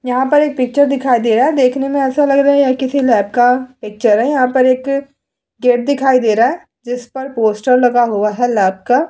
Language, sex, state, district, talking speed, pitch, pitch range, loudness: Hindi, female, Bihar, Vaishali, 245 wpm, 255 Hz, 240-275 Hz, -14 LUFS